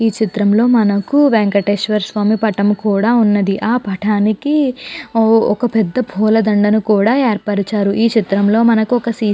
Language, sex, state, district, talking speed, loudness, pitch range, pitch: Telugu, female, Andhra Pradesh, Chittoor, 140 wpm, -14 LUFS, 205-230 Hz, 215 Hz